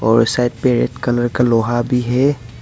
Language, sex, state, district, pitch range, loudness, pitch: Hindi, male, Arunachal Pradesh, Papum Pare, 115-125 Hz, -16 LUFS, 120 Hz